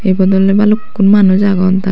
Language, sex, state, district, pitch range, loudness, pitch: Chakma, female, Tripura, Dhalai, 190-205 Hz, -10 LUFS, 195 Hz